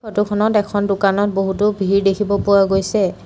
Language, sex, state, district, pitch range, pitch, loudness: Assamese, female, Assam, Sonitpur, 195-205 Hz, 200 Hz, -17 LUFS